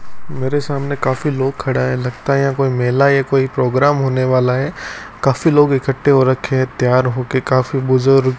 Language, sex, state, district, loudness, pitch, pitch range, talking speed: Hindi, male, Rajasthan, Bikaner, -16 LUFS, 130 Hz, 130-140 Hz, 200 wpm